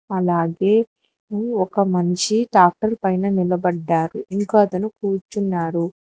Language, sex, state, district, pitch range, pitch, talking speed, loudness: Telugu, female, Telangana, Hyderabad, 180-210 Hz, 190 Hz, 90 wpm, -20 LUFS